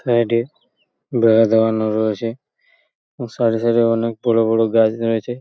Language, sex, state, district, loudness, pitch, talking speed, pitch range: Bengali, male, West Bengal, Paschim Medinipur, -17 LUFS, 115 Hz, 165 wpm, 110-115 Hz